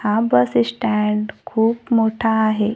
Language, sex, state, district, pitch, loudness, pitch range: Marathi, female, Maharashtra, Gondia, 220 Hz, -18 LUFS, 210-225 Hz